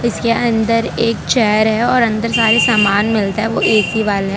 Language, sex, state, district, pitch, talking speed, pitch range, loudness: Hindi, female, Gujarat, Valsad, 225 Hz, 220 wpm, 215-230 Hz, -14 LUFS